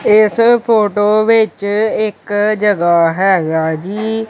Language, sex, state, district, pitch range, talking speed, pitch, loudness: Punjabi, male, Punjab, Kapurthala, 195-220 Hz, 100 wpm, 210 Hz, -13 LUFS